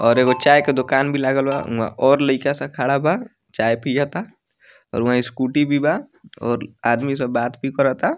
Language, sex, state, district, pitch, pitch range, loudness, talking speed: Bhojpuri, male, Bihar, Muzaffarpur, 135 Hz, 125-145 Hz, -19 LUFS, 200 wpm